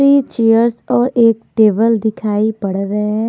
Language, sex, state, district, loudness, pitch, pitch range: Hindi, female, Haryana, Charkhi Dadri, -14 LUFS, 225 Hz, 215-235 Hz